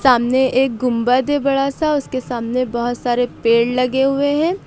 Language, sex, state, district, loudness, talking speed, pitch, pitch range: Hindi, female, Uttar Pradesh, Lucknow, -17 LUFS, 180 wpm, 255 Hz, 245-275 Hz